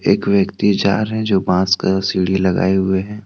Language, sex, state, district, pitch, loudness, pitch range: Hindi, male, Jharkhand, Deoghar, 95 Hz, -16 LUFS, 95-100 Hz